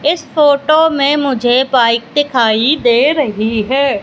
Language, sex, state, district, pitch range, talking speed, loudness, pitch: Hindi, female, Madhya Pradesh, Katni, 235-295 Hz, 135 wpm, -12 LUFS, 275 Hz